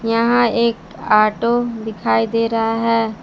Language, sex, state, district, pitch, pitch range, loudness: Hindi, female, Jharkhand, Palamu, 230 Hz, 220-235 Hz, -17 LUFS